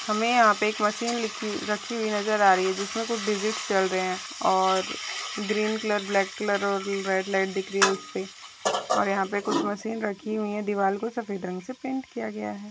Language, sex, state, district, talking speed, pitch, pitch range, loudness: Hindi, female, Maharashtra, Dhule, 215 wpm, 210 Hz, 195-215 Hz, -26 LUFS